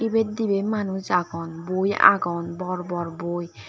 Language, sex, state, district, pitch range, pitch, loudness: Chakma, female, Tripura, Dhalai, 170-200 Hz, 180 Hz, -24 LUFS